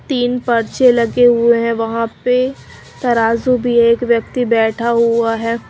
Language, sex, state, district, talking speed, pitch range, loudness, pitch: Hindi, female, Chandigarh, Chandigarh, 160 wpm, 230-245 Hz, -14 LUFS, 235 Hz